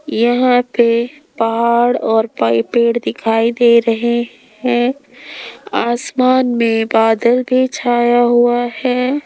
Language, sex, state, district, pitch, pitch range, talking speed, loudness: Hindi, female, Rajasthan, Jaipur, 240 Hz, 230-250 Hz, 110 wpm, -14 LUFS